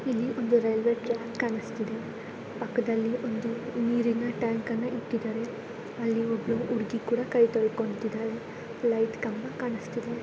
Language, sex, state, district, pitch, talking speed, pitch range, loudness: Kannada, female, Karnataka, Dharwad, 230 Hz, 125 wpm, 225-235 Hz, -29 LUFS